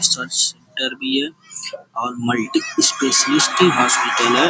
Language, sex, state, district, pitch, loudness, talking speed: Hindi, male, Uttar Pradesh, Gorakhpur, 175 Hz, -17 LUFS, 105 wpm